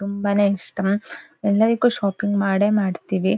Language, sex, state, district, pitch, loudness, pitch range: Kannada, female, Karnataka, Shimoga, 200 Hz, -21 LUFS, 195-210 Hz